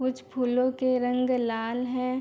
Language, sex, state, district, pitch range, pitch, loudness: Hindi, female, Bihar, Bhagalpur, 245-255 Hz, 250 Hz, -27 LUFS